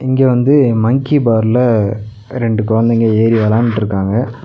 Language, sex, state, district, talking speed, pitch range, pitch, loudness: Tamil, male, Tamil Nadu, Nilgiris, 110 wpm, 110-125 Hz, 115 Hz, -13 LUFS